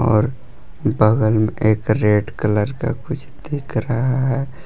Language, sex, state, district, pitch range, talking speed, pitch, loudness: Hindi, male, Jharkhand, Palamu, 110-135 Hz, 140 wpm, 120 Hz, -19 LUFS